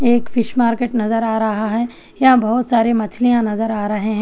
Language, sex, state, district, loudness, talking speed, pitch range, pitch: Hindi, female, Telangana, Hyderabad, -17 LUFS, 215 wpm, 215-240 Hz, 230 Hz